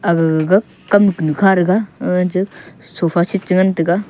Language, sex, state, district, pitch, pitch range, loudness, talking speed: Wancho, male, Arunachal Pradesh, Longding, 185 Hz, 170-195 Hz, -15 LUFS, 190 wpm